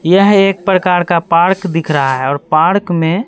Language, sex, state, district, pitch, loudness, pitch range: Hindi, male, Bihar, Katihar, 175 Hz, -12 LUFS, 160-190 Hz